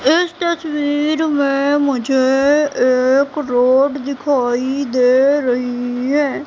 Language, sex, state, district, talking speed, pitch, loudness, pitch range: Hindi, female, Madhya Pradesh, Katni, 95 wpm, 275 Hz, -16 LUFS, 255-295 Hz